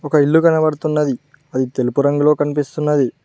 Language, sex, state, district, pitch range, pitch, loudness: Telugu, male, Telangana, Mahabubabad, 140-150 Hz, 150 Hz, -17 LUFS